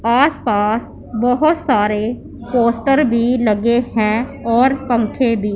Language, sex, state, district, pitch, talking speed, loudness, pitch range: Hindi, female, Punjab, Pathankot, 235 Hz, 110 wpm, -16 LUFS, 225-260 Hz